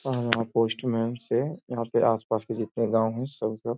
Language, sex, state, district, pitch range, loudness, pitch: Hindi, male, Uttar Pradesh, Etah, 115-120 Hz, -27 LUFS, 115 Hz